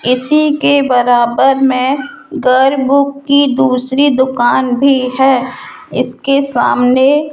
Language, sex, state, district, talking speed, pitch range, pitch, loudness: Hindi, female, Rajasthan, Jaipur, 105 wpm, 255-280 Hz, 270 Hz, -11 LUFS